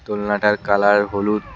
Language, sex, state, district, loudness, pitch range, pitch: Bengali, male, West Bengal, Cooch Behar, -18 LUFS, 100-105 Hz, 105 Hz